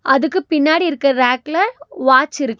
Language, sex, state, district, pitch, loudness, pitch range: Tamil, female, Tamil Nadu, Nilgiris, 290 Hz, -15 LUFS, 265-330 Hz